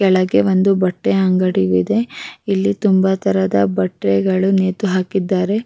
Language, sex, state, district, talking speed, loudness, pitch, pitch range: Kannada, female, Karnataka, Raichur, 125 wpm, -16 LUFS, 190 Hz, 180-195 Hz